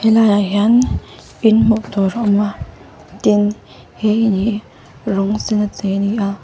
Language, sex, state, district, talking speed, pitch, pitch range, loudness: Mizo, female, Mizoram, Aizawl, 185 wpm, 210 Hz, 200-220 Hz, -16 LUFS